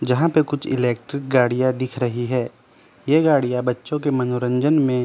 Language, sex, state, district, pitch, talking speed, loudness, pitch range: Hindi, male, Jharkhand, Jamtara, 130 Hz, 165 wpm, -20 LUFS, 125-145 Hz